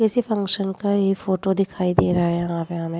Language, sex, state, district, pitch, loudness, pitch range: Hindi, female, Uttar Pradesh, Muzaffarnagar, 190 Hz, -21 LUFS, 175-200 Hz